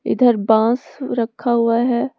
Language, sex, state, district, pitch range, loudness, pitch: Hindi, female, Jharkhand, Palamu, 230-245 Hz, -18 LUFS, 235 Hz